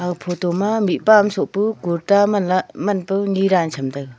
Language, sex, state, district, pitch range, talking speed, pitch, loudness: Wancho, female, Arunachal Pradesh, Longding, 175-205 Hz, 200 wpm, 190 Hz, -18 LUFS